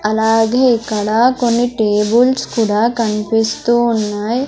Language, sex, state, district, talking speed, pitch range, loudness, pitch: Telugu, female, Andhra Pradesh, Sri Satya Sai, 95 wpm, 215-240 Hz, -14 LUFS, 225 Hz